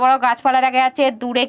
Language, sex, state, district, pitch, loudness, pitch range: Bengali, female, West Bengal, Jalpaiguri, 260 Hz, -16 LUFS, 250-265 Hz